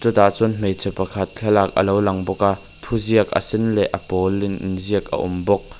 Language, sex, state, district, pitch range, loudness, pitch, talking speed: Mizo, male, Mizoram, Aizawl, 95-105 Hz, -20 LUFS, 100 Hz, 225 wpm